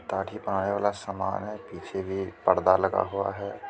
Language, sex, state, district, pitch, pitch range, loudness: Hindi, male, Bihar, Gopalganj, 95 Hz, 95-100 Hz, -28 LUFS